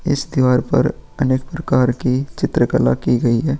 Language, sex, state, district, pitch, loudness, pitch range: Hindi, male, Bihar, Vaishali, 130 Hz, -17 LUFS, 125-145 Hz